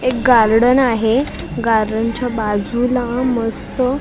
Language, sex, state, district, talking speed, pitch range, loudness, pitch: Marathi, female, Maharashtra, Mumbai Suburban, 105 wpm, 225-255 Hz, -16 LUFS, 240 Hz